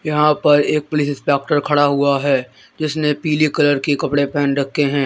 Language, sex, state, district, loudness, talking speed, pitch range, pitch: Hindi, male, Uttar Pradesh, Lalitpur, -17 LUFS, 180 wpm, 140-150 Hz, 145 Hz